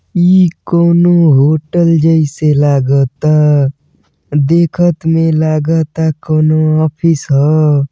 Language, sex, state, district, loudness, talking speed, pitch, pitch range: Bhojpuri, male, Uttar Pradesh, Gorakhpur, -11 LUFS, 85 wpm, 155 Hz, 145-165 Hz